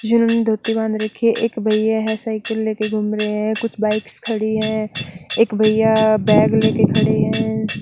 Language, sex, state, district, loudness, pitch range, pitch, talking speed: Hindi, female, Chandigarh, Chandigarh, -18 LUFS, 215-220 Hz, 220 Hz, 190 wpm